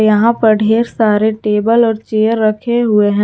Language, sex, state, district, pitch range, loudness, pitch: Hindi, female, Jharkhand, Garhwa, 215-230 Hz, -13 LUFS, 220 Hz